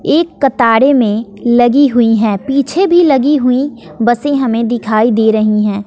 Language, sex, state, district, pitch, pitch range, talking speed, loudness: Hindi, female, Bihar, West Champaran, 240 Hz, 225-275 Hz, 165 wpm, -11 LUFS